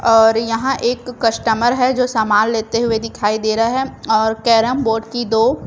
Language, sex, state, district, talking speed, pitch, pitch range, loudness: Hindi, female, Chhattisgarh, Raipur, 190 wpm, 225 Hz, 225-245 Hz, -16 LUFS